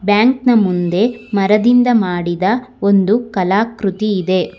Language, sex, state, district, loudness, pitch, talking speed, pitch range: Kannada, female, Karnataka, Bangalore, -15 LUFS, 205 Hz, 105 wpm, 190-235 Hz